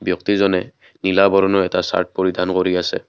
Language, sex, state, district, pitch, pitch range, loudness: Assamese, male, Assam, Kamrup Metropolitan, 95 Hz, 90-100 Hz, -18 LUFS